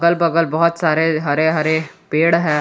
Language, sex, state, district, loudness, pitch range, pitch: Hindi, male, Jharkhand, Garhwa, -17 LUFS, 155-170 Hz, 160 Hz